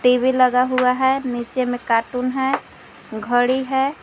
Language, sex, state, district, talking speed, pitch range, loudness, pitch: Hindi, female, Jharkhand, Garhwa, 150 wpm, 245-265 Hz, -19 LUFS, 250 Hz